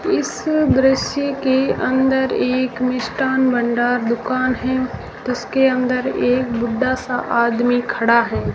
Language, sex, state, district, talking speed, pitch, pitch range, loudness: Hindi, male, Rajasthan, Jaisalmer, 120 wpm, 255 Hz, 240-265 Hz, -18 LUFS